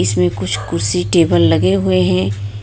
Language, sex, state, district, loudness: Hindi, female, Jharkhand, Ranchi, -15 LUFS